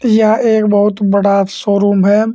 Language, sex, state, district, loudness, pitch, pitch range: Hindi, male, Uttar Pradesh, Saharanpur, -12 LUFS, 205 Hz, 200-220 Hz